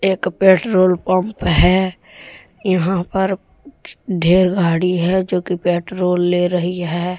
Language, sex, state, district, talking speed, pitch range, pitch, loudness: Hindi, male, Jharkhand, Deoghar, 115 wpm, 180-190 Hz, 180 Hz, -17 LUFS